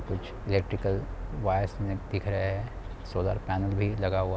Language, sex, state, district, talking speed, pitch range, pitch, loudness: Hindi, male, Bihar, Sitamarhi, 150 wpm, 95-100 Hz, 95 Hz, -31 LUFS